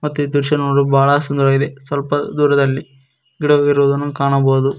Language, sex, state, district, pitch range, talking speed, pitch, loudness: Kannada, male, Karnataka, Koppal, 140-145 Hz, 125 wpm, 140 Hz, -16 LUFS